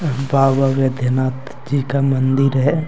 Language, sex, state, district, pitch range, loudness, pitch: Hindi, male, Jharkhand, Deoghar, 130-140 Hz, -17 LUFS, 135 Hz